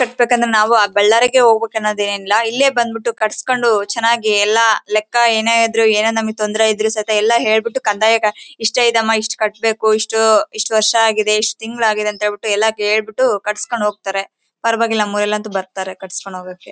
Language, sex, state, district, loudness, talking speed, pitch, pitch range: Kannada, female, Karnataka, Bellary, -15 LUFS, 170 wpm, 220 Hz, 210-230 Hz